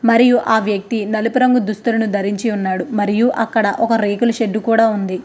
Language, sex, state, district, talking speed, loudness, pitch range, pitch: Telugu, female, Andhra Pradesh, Krishna, 170 wpm, -16 LUFS, 205-230 Hz, 220 Hz